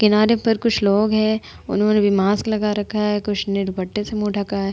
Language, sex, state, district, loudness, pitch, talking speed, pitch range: Hindi, female, Uttar Pradesh, Hamirpur, -19 LUFS, 210 Hz, 230 wpm, 200-215 Hz